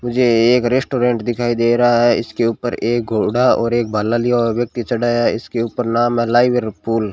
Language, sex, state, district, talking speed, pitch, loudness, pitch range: Hindi, male, Rajasthan, Bikaner, 210 wpm, 120 Hz, -16 LUFS, 115-120 Hz